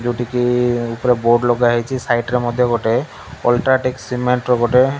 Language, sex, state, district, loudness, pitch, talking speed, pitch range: Odia, male, Odisha, Malkangiri, -17 LUFS, 120 Hz, 170 wpm, 120-125 Hz